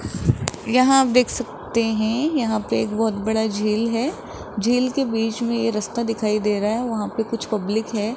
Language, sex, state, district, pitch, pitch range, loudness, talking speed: Hindi, female, Rajasthan, Jaipur, 225 Hz, 215-235 Hz, -21 LUFS, 200 wpm